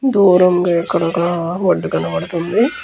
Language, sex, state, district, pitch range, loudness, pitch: Telugu, male, Andhra Pradesh, Krishna, 170-190 Hz, -16 LUFS, 175 Hz